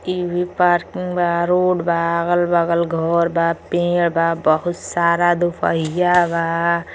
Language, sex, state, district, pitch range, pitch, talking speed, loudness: Bhojpuri, female, Uttar Pradesh, Gorakhpur, 170-175 Hz, 170 Hz, 140 wpm, -18 LUFS